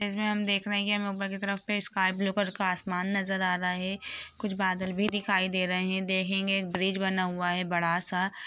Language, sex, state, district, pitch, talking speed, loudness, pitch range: Hindi, female, Bihar, Lakhisarai, 190 Hz, 240 wpm, -29 LUFS, 185-200 Hz